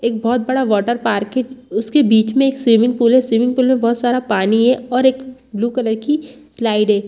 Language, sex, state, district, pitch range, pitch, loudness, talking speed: Hindi, female, Chhattisgarh, Balrampur, 225-255 Hz, 240 Hz, -16 LUFS, 235 wpm